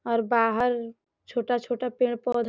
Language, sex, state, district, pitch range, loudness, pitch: Hindi, female, Bihar, Gopalganj, 230-245 Hz, -26 LUFS, 240 Hz